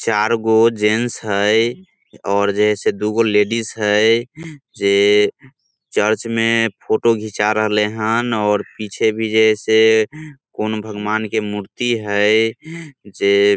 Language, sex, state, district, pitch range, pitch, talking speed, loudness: Maithili, male, Bihar, Samastipur, 105-115 Hz, 110 Hz, 135 wpm, -17 LUFS